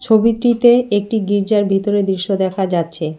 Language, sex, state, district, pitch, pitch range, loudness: Bengali, female, West Bengal, Alipurduar, 205 Hz, 190-225 Hz, -15 LUFS